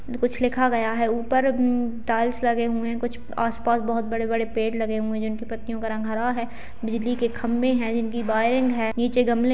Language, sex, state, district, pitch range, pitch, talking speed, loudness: Hindi, female, Bihar, Gaya, 225-245 Hz, 235 Hz, 240 wpm, -24 LUFS